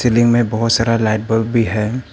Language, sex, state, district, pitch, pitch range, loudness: Hindi, male, Arunachal Pradesh, Papum Pare, 115 Hz, 110-120 Hz, -16 LUFS